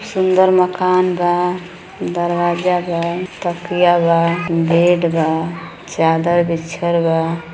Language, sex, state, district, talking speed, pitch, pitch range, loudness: Bhojpuri, female, Uttar Pradesh, Gorakhpur, 95 wpm, 175 Hz, 165-180 Hz, -16 LUFS